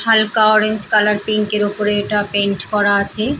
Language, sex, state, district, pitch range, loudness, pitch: Bengali, female, West Bengal, Paschim Medinipur, 205-215 Hz, -15 LUFS, 210 Hz